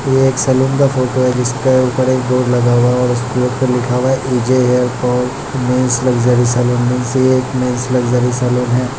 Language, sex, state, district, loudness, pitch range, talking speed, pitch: Hindi, male, Bihar, Muzaffarpur, -14 LUFS, 125-130 Hz, 220 wpm, 125 Hz